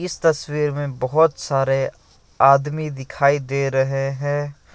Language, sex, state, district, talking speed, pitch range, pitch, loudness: Hindi, male, Assam, Kamrup Metropolitan, 125 wpm, 135-150 Hz, 140 Hz, -20 LUFS